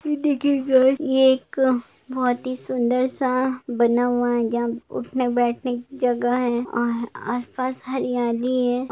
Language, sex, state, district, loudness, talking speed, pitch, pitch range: Hindi, female, Jharkhand, Jamtara, -22 LUFS, 140 wpm, 250 Hz, 240-260 Hz